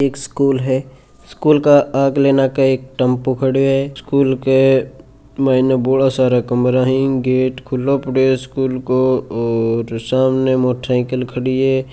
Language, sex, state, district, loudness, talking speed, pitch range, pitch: Marwari, male, Rajasthan, Churu, -16 LUFS, 140 wpm, 130-135 Hz, 130 Hz